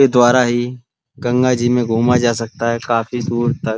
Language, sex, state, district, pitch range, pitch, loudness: Hindi, male, Uttar Pradesh, Muzaffarnagar, 115-125 Hz, 120 Hz, -16 LUFS